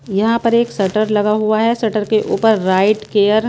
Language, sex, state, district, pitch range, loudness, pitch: Hindi, female, Bihar, Kaimur, 210-225 Hz, -15 LUFS, 215 Hz